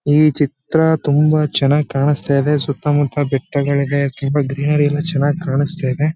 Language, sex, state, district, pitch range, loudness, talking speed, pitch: Kannada, male, Karnataka, Chamarajanagar, 140-150 Hz, -16 LUFS, 145 wpm, 145 Hz